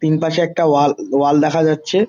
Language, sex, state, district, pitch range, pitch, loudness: Bengali, male, West Bengal, Jalpaiguri, 145-165 Hz, 155 Hz, -16 LUFS